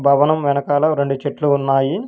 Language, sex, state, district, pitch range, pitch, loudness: Telugu, male, Telangana, Hyderabad, 140-145 Hz, 140 Hz, -17 LUFS